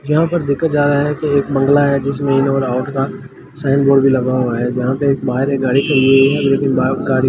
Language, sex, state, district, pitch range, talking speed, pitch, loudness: Hindi, male, Delhi, New Delhi, 130-140 Hz, 265 wpm, 135 Hz, -15 LUFS